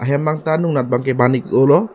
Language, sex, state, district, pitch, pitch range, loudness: Karbi, male, Assam, Karbi Anglong, 140 Hz, 130-155 Hz, -16 LUFS